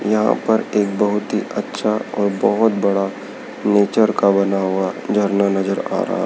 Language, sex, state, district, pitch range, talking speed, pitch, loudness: Hindi, male, Madhya Pradesh, Dhar, 100-105 Hz, 165 wpm, 100 Hz, -18 LUFS